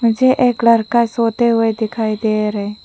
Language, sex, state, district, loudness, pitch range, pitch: Hindi, female, Mizoram, Aizawl, -15 LUFS, 215-235 Hz, 225 Hz